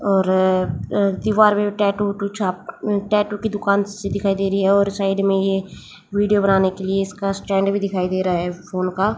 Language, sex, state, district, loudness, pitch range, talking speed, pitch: Hindi, female, Haryana, Jhajjar, -20 LUFS, 190-205 Hz, 205 wpm, 195 Hz